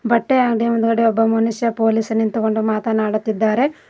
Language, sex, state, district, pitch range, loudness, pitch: Kannada, female, Karnataka, Koppal, 220-230 Hz, -18 LUFS, 225 Hz